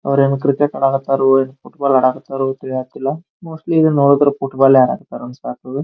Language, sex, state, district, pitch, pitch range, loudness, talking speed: Kannada, male, Karnataka, Bijapur, 135 Hz, 135-140 Hz, -16 LUFS, 145 wpm